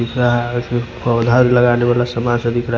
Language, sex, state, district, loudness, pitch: Hindi, male, Punjab, Fazilka, -16 LUFS, 120 Hz